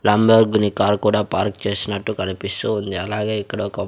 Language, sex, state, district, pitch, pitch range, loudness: Telugu, male, Andhra Pradesh, Sri Satya Sai, 105 Hz, 100-105 Hz, -19 LUFS